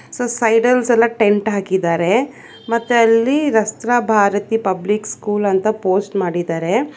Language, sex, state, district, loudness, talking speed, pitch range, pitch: Kannada, female, Karnataka, Bangalore, -16 LUFS, 130 wpm, 195-235 Hz, 215 Hz